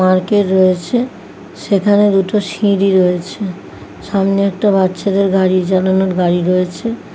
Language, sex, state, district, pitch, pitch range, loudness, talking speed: Bengali, female, West Bengal, Kolkata, 190 Hz, 185-200 Hz, -14 LUFS, 90 wpm